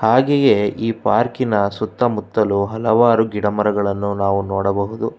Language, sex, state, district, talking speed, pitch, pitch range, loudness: Kannada, male, Karnataka, Bangalore, 115 wpm, 105 Hz, 100-115 Hz, -18 LUFS